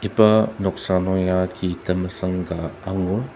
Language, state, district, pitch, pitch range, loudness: Ao, Nagaland, Dimapur, 95 Hz, 90-100 Hz, -22 LUFS